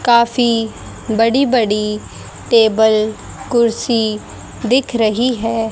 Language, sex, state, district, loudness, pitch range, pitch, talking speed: Hindi, female, Haryana, Charkhi Dadri, -15 LUFS, 220-240 Hz, 230 Hz, 85 wpm